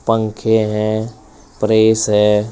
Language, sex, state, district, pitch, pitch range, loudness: Hindi, male, Uttar Pradesh, Saharanpur, 110 Hz, 105-110 Hz, -15 LUFS